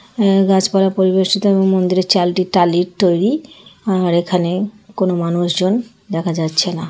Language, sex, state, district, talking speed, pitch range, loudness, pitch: Bengali, female, West Bengal, Jhargram, 120 wpm, 175-200 Hz, -16 LUFS, 185 Hz